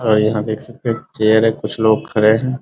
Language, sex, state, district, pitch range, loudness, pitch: Hindi, male, Bihar, Muzaffarpur, 110-120 Hz, -16 LUFS, 110 Hz